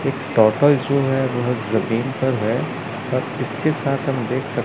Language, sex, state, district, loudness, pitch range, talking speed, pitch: Hindi, male, Chandigarh, Chandigarh, -20 LUFS, 120-140 Hz, 115 wpm, 130 Hz